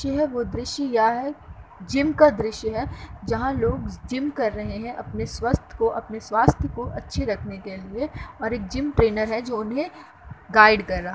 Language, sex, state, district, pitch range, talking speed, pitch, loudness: Hindi, female, Uttar Pradesh, Muzaffarnagar, 220-280 Hz, 195 wpm, 230 Hz, -23 LUFS